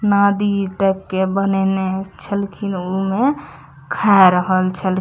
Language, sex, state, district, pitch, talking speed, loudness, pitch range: Maithili, female, Bihar, Madhepura, 195 Hz, 130 wpm, -17 LUFS, 185-200 Hz